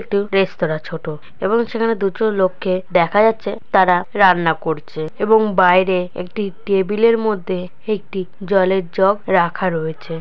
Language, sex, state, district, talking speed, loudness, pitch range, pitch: Bengali, female, West Bengal, Purulia, 140 wpm, -17 LUFS, 180-205 Hz, 190 Hz